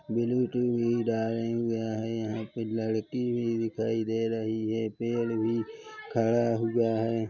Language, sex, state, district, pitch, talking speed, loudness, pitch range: Hindi, male, Chhattisgarh, Korba, 115 Hz, 150 wpm, -29 LUFS, 110-120 Hz